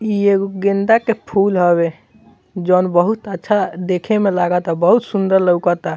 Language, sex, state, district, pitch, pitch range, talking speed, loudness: Bhojpuri, male, Bihar, Muzaffarpur, 190 Hz, 180-205 Hz, 160 wpm, -16 LUFS